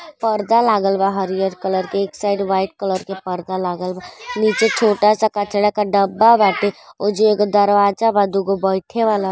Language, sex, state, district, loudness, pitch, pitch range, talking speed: Hindi, female, Uttar Pradesh, Gorakhpur, -17 LUFS, 200 Hz, 190-215 Hz, 185 wpm